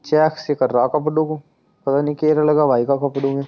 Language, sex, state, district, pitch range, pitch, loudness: Hindi, male, Uttar Pradesh, Muzaffarnagar, 140-155 Hz, 150 Hz, -18 LUFS